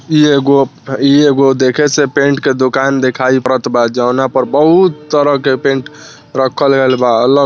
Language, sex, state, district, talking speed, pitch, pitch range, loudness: Bhojpuri, male, Bihar, Saran, 185 wpm, 135 Hz, 130-145 Hz, -11 LUFS